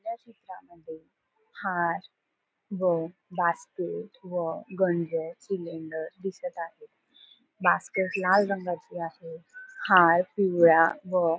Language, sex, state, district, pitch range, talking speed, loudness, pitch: Marathi, female, Maharashtra, Solapur, 165-195 Hz, 95 wpm, -27 LUFS, 180 Hz